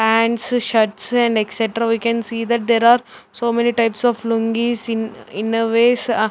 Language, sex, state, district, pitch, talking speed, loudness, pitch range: English, female, Punjab, Fazilka, 230 Hz, 180 wpm, -18 LUFS, 225-235 Hz